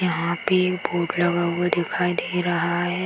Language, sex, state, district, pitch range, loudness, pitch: Hindi, female, Bihar, Darbhanga, 170-180 Hz, -22 LUFS, 175 Hz